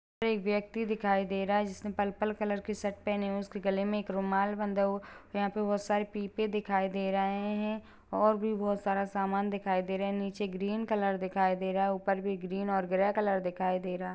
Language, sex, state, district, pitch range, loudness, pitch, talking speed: Hindi, female, Bihar, Jahanabad, 195-210 Hz, -32 LUFS, 200 Hz, 235 wpm